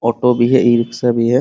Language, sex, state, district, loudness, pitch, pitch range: Hindi, male, Bihar, Muzaffarpur, -14 LUFS, 120 Hz, 120-125 Hz